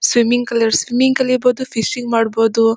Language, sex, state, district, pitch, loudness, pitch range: Kannada, female, Karnataka, Bellary, 240 Hz, -16 LUFS, 225-255 Hz